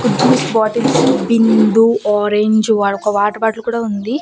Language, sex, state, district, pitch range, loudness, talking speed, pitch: Telugu, female, Andhra Pradesh, Annamaya, 210-230 Hz, -14 LUFS, 155 wpm, 220 Hz